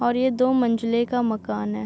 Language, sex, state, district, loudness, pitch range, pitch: Hindi, female, Uttar Pradesh, Deoria, -22 LUFS, 215-250 Hz, 235 Hz